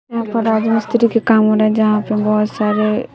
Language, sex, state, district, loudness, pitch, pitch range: Hindi, female, Bihar, West Champaran, -15 LUFS, 220 Hz, 215-230 Hz